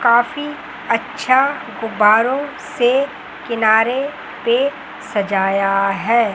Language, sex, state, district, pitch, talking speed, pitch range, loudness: Hindi, female, Chandigarh, Chandigarh, 235 Hz, 75 wpm, 215-275 Hz, -17 LUFS